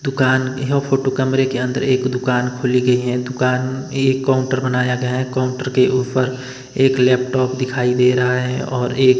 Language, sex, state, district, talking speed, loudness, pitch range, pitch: Hindi, male, Himachal Pradesh, Shimla, 180 wpm, -18 LUFS, 125-130 Hz, 130 Hz